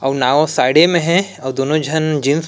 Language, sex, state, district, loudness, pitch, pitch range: Chhattisgarhi, male, Chhattisgarh, Rajnandgaon, -15 LUFS, 155 Hz, 140-160 Hz